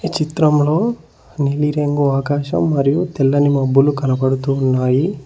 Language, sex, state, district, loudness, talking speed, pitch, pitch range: Telugu, male, Telangana, Mahabubabad, -16 LUFS, 90 wpm, 145 Hz, 135-150 Hz